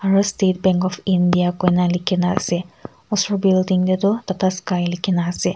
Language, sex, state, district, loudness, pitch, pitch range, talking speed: Nagamese, female, Nagaland, Kohima, -19 LUFS, 185 Hz, 180-190 Hz, 170 wpm